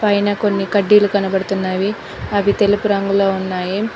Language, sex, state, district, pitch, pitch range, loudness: Telugu, female, Telangana, Mahabubabad, 200 Hz, 195-205 Hz, -16 LUFS